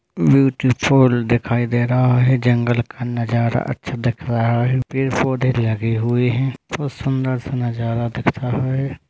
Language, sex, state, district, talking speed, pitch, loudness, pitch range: Hindi, male, Rajasthan, Churu, 160 wpm, 125 Hz, -19 LUFS, 120-130 Hz